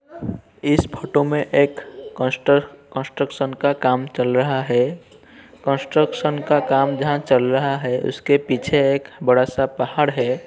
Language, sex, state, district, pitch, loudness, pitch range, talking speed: Hindi, male, Uttar Pradesh, Etah, 140 Hz, -20 LUFS, 130-145 Hz, 140 wpm